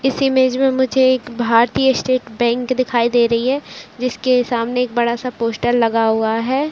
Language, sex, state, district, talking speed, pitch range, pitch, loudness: Hindi, female, Chhattisgarh, Raigarh, 185 wpm, 235-260 Hz, 245 Hz, -17 LUFS